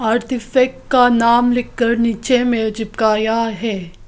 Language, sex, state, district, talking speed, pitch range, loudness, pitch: Hindi, female, Arunachal Pradesh, Lower Dibang Valley, 105 wpm, 220-245 Hz, -16 LUFS, 230 Hz